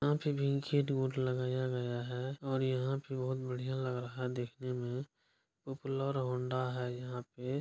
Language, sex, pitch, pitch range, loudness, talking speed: Angika, male, 130 Hz, 125-135 Hz, -37 LUFS, 165 wpm